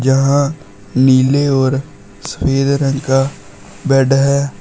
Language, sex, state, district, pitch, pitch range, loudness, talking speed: Hindi, male, Uttar Pradesh, Shamli, 135 Hz, 130-140 Hz, -14 LUFS, 105 wpm